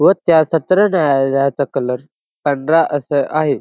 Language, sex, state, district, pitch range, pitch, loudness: Marathi, male, Maharashtra, Dhule, 140-165 Hz, 145 Hz, -15 LUFS